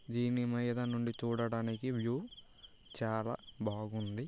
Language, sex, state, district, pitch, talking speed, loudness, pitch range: Telugu, male, Andhra Pradesh, Srikakulam, 115 Hz, 100 wpm, -37 LUFS, 110-120 Hz